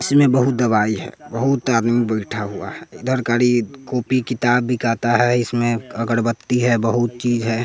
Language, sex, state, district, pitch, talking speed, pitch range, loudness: Hindi, male, Bihar, West Champaran, 120 Hz, 165 wpm, 115-125 Hz, -19 LUFS